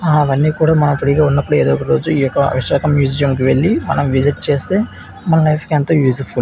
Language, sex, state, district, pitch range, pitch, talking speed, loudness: Telugu, male, Andhra Pradesh, Visakhapatnam, 140-155 Hz, 145 Hz, 215 wpm, -14 LUFS